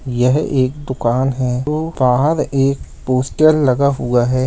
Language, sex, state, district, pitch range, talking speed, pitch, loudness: Hindi, male, Bihar, Lakhisarai, 125-145 Hz, 150 wpm, 130 Hz, -16 LUFS